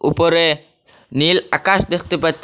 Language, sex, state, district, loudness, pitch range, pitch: Bengali, male, Assam, Hailakandi, -16 LUFS, 160-175 Hz, 165 Hz